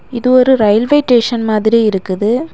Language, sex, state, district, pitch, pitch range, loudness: Tamil, female, Tamil Nadu, Kanyakumari, 230 Hz, 215-255 Hz, -12 LUFS